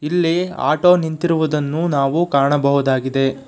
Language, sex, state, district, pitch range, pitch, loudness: Kannada, male, Karnataka, Bangalore, 140-170 Hz, 150 Hz, -17 LUFS